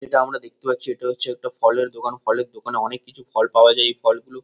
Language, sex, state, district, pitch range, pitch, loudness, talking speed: Bengali, male, West Bengal, Kolkata, 115-130 Hz, 125 Hz, -20 LUFS, 270 wpm